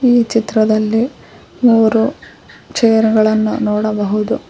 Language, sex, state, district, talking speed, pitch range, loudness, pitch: Kannada, female, Karnataka, Koppal, 80 wpm, 215-230 Hz, -14 LUFS, 220 Hz